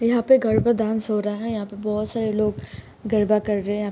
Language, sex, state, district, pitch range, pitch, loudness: Hindi, female, Chhattisgarh, Kabirdham, 210-225 Hz, 215 Hz, -22 LUFS